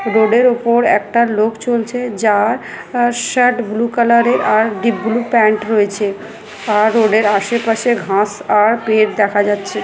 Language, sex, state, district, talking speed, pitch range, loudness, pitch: Bengali, female, West Bengal, Malda, 140 wpm, 210-235 Hz, -14 LUFS, 220 Hz